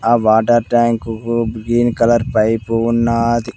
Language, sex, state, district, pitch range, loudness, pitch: Telugu, male, Telangana, Mahabubabad, 115-120 Hz, -15 LUFS, 115 Hz